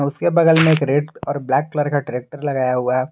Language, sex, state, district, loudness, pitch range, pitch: Hindi, male, Jharkhand, Garhwa, -18 LUFS, 130-150 Hz, 145 Hz